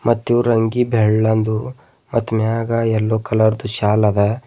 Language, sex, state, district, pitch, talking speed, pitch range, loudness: Kannada, male, Karnataka, Bidar, 110 Hz, 120 wpm, 110-115 Hz, -17 LUFS